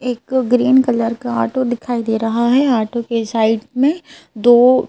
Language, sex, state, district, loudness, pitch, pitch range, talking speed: Hindi, female, Madhya Pradesh, Bhopal, -16 LUFS, 240 Hz, 225-255 Hz, 170 wpm